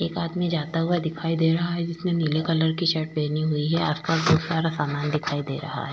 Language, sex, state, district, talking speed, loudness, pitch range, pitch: Hindi, female, Goa, North and South Goa, 240 wpm, -24 LUFS, 150-170 Hz, 160 Hz